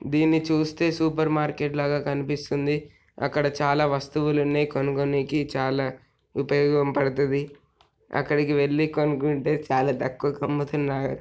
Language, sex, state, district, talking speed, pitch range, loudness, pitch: Telugu, male, Telangana, Nalgonda, 105 wpm, 140-150 Hz, -25 LUFS, 145 Hz